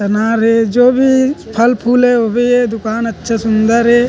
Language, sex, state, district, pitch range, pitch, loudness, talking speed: Chhattisgarhi, male, Chhattisgarh, Rajnandgaon, 225-245 Hz, 235 Hz, -12 LUFS, 205 wpm